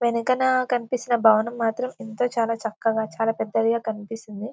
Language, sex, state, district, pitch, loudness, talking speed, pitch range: Telugu, female, Telangana, Karimnagar, 230 Hz, -23 LUFS, 145 wpm, 225-245 Hz